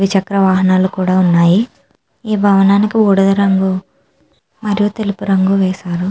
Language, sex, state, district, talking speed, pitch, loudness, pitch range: Telugu, female, Andhra Pradesh, Srikakulam, 135 wpm, 195 Hz, -13 LUFS, 185-200 Hz